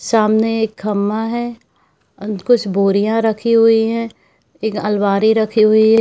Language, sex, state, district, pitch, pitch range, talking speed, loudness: Hindi, female, Jharkhand, Jamtara, 220 Hz, 210-225 Hz, 150 wpm, -15 LUFS